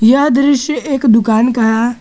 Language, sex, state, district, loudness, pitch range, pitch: Hindi, male, Jharkhand, Garhwa, -12 LUFS, 225-275 Hz, 245 Hz